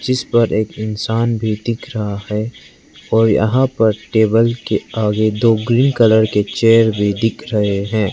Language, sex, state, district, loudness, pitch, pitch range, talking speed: Hindi, male, Arunachal Pradesh, Lower Dibang Valley, -16 LUFS, 110 Hz, 105-115 Hz, 170 wpm